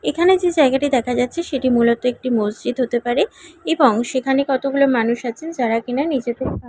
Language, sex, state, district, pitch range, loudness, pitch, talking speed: Bengali, female, Karnataka, Bangalore, 240-285 Hz, -18 LUFS, 260 Hz, 180 wpm